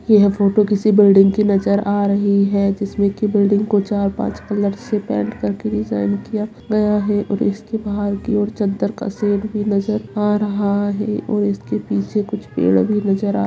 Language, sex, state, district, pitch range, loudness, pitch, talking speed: Hindi, female, Bihar, Purnia, 200-210 Hz, -18 LUFS, 205 Hz, 200 wpm